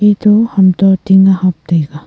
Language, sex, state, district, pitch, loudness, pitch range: Wancho, female, Arunachal Pradesh, Longding, 190 Hz, -10 LUFS, 185-205 Hz